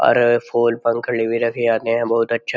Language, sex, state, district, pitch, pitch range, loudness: Hindi, male, Uttar Pradesh, Jyotiba Phule Nagar, 115 Hz, 115-120 Hz, -18 LUFS